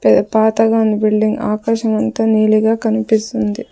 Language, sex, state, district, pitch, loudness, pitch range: Telugu, female, Andhra Pradesh, Sri Satya Sai, 220 Hz, -15 LUFS, 215-225 Hz